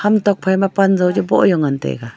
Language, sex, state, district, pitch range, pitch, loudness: Wancho, female, Arunachal Pradesh, Longding, 180-195 Hz, 190 Hz, -15 LUFS